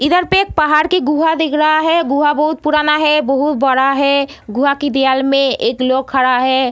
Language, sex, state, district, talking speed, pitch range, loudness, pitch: Hindi, female, Bihar, Darbhanga, 250 wpm, 270-305 Hz, -14 LUFS, 290 Hz